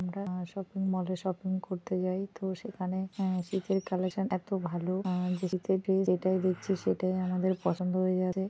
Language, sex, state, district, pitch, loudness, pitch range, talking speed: Bengali, female, West Bengal, North 24 Parganas, 185 Hz, -32 LUFS, 185-190 Hz, 140 wpm